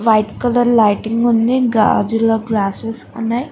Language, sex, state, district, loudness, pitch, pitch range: Telugu, female, Andhra Pradesh, Guntur, -15 LUFS, 225 Hz, 215-240 Hz